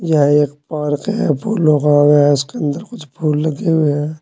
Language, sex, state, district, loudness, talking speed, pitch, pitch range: Hindi, male, Uttar Pradesh, Saharanpur, -15 LUFS, 200 wpm, 150 Hz, 145-155 Hz